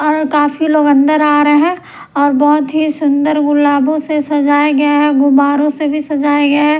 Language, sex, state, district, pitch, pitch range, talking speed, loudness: Hindi, female, Punjab, Pathankot, 295 Hz, 290-300 Hz, 195 wpm, -12 LUFS